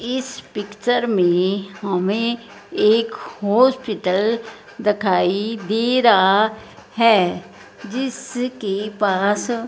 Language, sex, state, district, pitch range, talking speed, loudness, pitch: Hindi, female, Punjab, Fazilka, 200-235 Hz, 75 wpm, -19 LUFS, 215 Hz